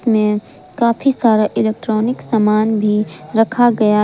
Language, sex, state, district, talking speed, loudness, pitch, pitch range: Hindi, female, Jharkhand, Garhwa, 120 wpm, -16 LUFS, 220 Hz, 210-235 Hz